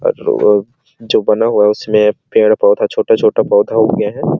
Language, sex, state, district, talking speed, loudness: Hindi, male, Chhattisgarh, Sarguja, 205 wpm, -12 LUFS